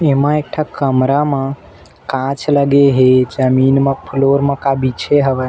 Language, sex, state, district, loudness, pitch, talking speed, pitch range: Chhattisgarhi, male, Chhattisgarh, Bilaspur, -14 LUFS, 135 Hz, 165 wpm, 130-140 Hz